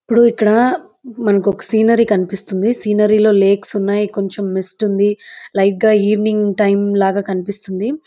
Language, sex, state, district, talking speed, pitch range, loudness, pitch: Telugu, female, Andhra Pradesh, Chittoor, 135 wpm, 200-220 Hz, -15 LUFS, 205 Hz